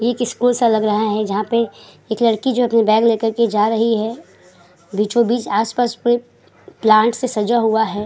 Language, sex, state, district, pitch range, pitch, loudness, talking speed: Hindi, female, Uttar Pradesh, Hamirpur, 215-235 Hz, 225 Hz, -17 LUFS, 200 wpm